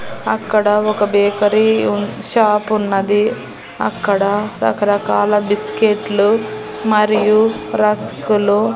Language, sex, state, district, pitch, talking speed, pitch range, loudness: Telugu, female, Andhra Pradesh, Annamaya, 210 Hz, 70 wpm, 205-215 Hz, -15 LUFS